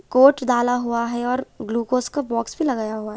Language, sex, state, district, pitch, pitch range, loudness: Hindi, female, Punjab, Kapurthala, 245 Hz, 235-255 Hz, -21 LUFS